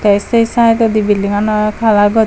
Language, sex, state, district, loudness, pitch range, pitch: Chakma, female, Tripura, Dhalai, -12 LUFS, 205-225 Hz, 215 Hz